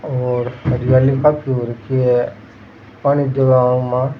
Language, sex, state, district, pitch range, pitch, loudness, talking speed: Rajasthani, male, Rajasthan, Churu, 120-135 Hz, 125 Hz, -16 LUFS, 145 wpm